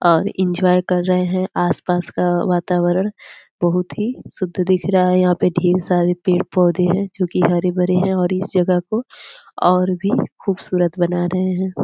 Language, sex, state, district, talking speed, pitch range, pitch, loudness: Hindi, female, Bihar, Purnia, 175 wpm, 180-185 Hz, 180 Hz, -18 LUFS